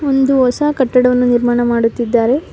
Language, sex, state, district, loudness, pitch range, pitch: Kannada, female, Karnataka, Bangalore, -13 LUFS, 240-270 Hz, 250 Hz